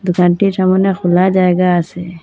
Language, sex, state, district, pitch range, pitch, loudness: Bengali, female, Assam, Hailakandi, 175-185 Hz, 180 Hz, -13 LUFS